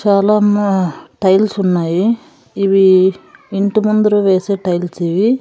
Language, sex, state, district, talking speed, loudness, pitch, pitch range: Telugu, female, Andhra Pradesh, Sri Satya Sai, 110 wpm, -14 LUFS, 195 Hz, 185-210 Hz